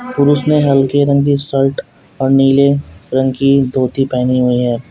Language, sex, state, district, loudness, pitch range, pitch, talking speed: Hindi, male, Uttar Pradesh, Lalitpur, -13 LUFS, 130-140 Hz, 135 Hz, 170 wpm